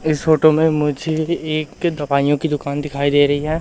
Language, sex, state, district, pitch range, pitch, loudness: Hindi, male, Madhya Pradesh, Umaria, 145-155 Hz, 155 Hz, -18 LUFS